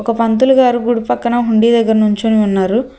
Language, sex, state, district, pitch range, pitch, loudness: Telugu, female, Telangana, Hyderabad, 220-240 Hz, 230 Hz, -13 LUFS